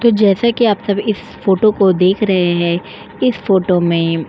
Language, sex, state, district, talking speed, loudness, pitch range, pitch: Hindi, female, Uttar Pradesh, Jyotiba Phule Nagar, 210 wpm, -14 LUFS, 180-215 Hz, 195 Hz